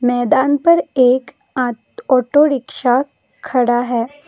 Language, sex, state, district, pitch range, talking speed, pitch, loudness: Hindi, female, Assam, Kamrup Metropolitan, 245-285 Hz, 110 wpm, 255 Hz, -15 LUFS